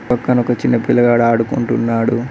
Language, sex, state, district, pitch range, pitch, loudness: Telugu, male, Telangana, Mahabubabad, 115-120 Hz, 120 Hz, -15 LUFS